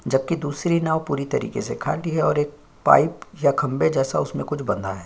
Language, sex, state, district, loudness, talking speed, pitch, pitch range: Hindi, male, Chhattisgarh, Korba, -22 LUFS, 190 wpm, 145 Hz, 135-160 Hz